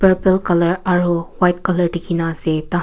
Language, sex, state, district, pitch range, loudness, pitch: Nagamese, female, Nagaland, Kohima, 170-185 Hz, -17 LUFS, 175 Hz